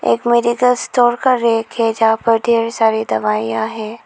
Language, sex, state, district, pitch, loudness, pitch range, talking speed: Hindi, female, Arunachal Pradesh, Lower Dibang Valley, 230 Hz, -15 LUFS, 220-240 Hz, 175 wpm